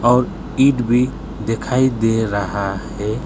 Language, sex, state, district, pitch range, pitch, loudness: Hindi, male, West Bengal, Alipurduar, 105-125 Hz, 115 Hz, -18 LUFS